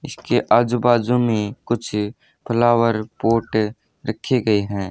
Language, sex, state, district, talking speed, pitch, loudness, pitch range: Hindi, male, Haryana, Rohtak, 120 wpm, 115 Hz, -20 LUFS, 105-120 Hz